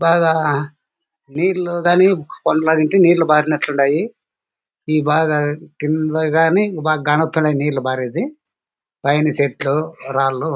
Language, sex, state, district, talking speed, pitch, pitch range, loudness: Telugu, male, Andhra Pradesh, Anantapur, 90 wpm, 155 Hz, 150-165 Hz, -17 LUFS